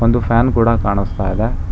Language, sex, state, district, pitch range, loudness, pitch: Kannada, male, Karnataka, Bangalore, 100-115 Hz, -16 LUFS, 115 Hz